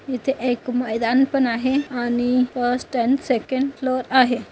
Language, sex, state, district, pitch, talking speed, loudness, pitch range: Marathi, female, Maharashtra, Nagpur, 255 Hz, 145 wpm, -21 LUFS, 245-265 Hz